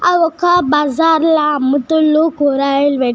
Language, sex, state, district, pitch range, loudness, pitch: Telugu, female, Telangana, Nalgonda, 280-325 Hz, -13 LUFS, 300 Hz